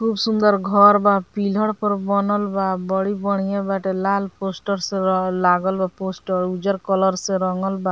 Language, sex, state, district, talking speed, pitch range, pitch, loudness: Bhojpuri, female, Bihar, Muzaffarpur, 165 wpm, 190-200 Hz, 195 Hz, -20 LUFS